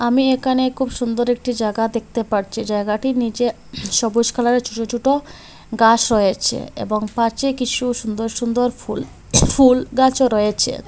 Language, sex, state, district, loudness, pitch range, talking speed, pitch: Bengali, female, Assam, Hailakandi, -18 LUFS, 225-250 Hz, 140 wpm, 240 Hz